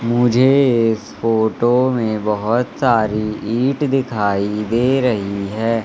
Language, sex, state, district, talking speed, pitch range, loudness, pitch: Hindi, male, Madhya Pradesh, Katni, 115 wpm, 105-125 Hz, -17 LUFS, 115 Hz